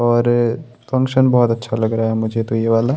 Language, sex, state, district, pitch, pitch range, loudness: Hindi, male, Maharashtra, Chandrapur, 120 Hz, 115-125 Hz, -17 LUFS